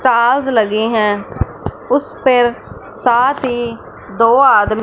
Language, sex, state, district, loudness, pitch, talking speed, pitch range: Hindi, female, Punjab, Fazilka, -14 LUFS, 235 Hz, 110 wpm, 215-250 Hz